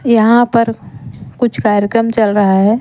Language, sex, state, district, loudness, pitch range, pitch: Hindi, female, Madhya Pradesh, Umaria, -12 LUFS, 210-235 Hz, 225 Hz